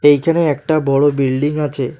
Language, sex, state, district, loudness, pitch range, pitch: Bengali, male, West Bengal, Alipurduar, -16 LUFS, 140-155 Hz, 145 Hz